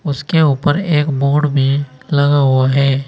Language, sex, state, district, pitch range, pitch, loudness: Hindi, male, Uttar Pradesh, Saharanpur, 135-150 Hz, 145 Hz, -14 LUFS